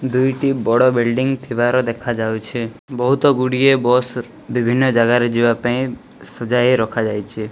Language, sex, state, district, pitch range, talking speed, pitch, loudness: Odia, male, Odisha, Malkangiri, 120-130 Hz, 130 wpm, 120 Hz, -17 LUFS